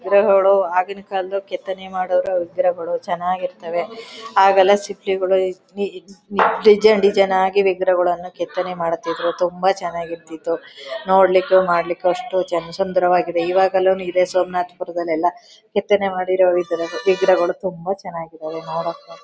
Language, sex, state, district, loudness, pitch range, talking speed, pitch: Kannada, female, Karnataka, Chamarajanagar, -19 LUFS, 175-195 Hz, 110 wpm, 185 Hz